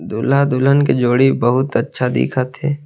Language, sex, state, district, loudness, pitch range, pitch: Chhattisgarhi, male, Chhattisgarh, Sarguja, -16 LUFS, 125-140 Hz, 130 Hz